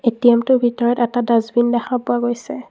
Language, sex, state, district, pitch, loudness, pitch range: Assamese, female, Assam, Kamrup Metropolitan, 240 Hz, -17 LUFS, 235-245 Hz